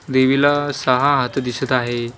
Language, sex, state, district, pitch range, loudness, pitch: Marathi, male, Maharashtra, Washim, 125-140 Hz, -17 LUFS, 130 Hz